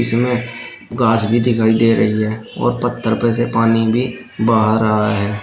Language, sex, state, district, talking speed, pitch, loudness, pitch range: Hindi, male, Uttar Pradesh, Shamli, 175 wpm, 115 Hz, -16 LUFS, 110-120 Hz